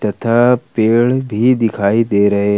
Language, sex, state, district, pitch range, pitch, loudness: Hindi, male, Jharkhand, Ranchi, 105-120 Hz, 115 Hz, -14 LUFS